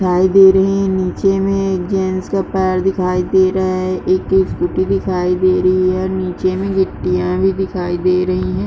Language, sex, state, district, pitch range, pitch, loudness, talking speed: Hindi, female, Uttarakhand, Uttarkashi, 180-190 Hz, 185 Hz, -15 LUFS, 195 wpm